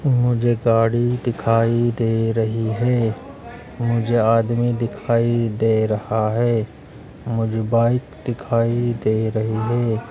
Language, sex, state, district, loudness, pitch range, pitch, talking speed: Hindi, male, Uttar Pradesh, Hamirpur, -20 LUFS, 110-120 Hz, 115 Hz, 105 wpm